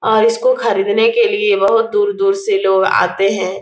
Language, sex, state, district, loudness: Hindi, female, Bihar, Jahanabad, -14 LUFS